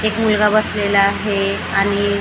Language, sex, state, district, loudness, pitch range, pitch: Marathi, female, Maharashtra, Gondia, -16 LUFS, 200-210 Hz, 205 Hz